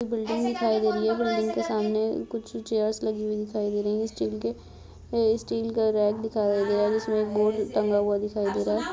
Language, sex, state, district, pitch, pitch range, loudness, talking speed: Hindi, female, Uttar Pradesh, Ghazipur, 215 Hz, 205-220 Hz, -26 LUFS, 235 wpm